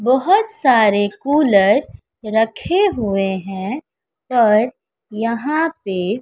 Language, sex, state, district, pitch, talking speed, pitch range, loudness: Hindi, female, Bihar, West Champaran, 230 Hz, 85 wpm, 205-290 Hz, -17 LUFS